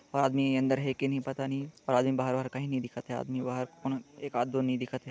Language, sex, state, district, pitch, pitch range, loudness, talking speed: Chhattisgarhi, male, Chhattisgarh, Jashpur, 130 Hz, 125-135 Hz, -32 LUFS, 245 wpm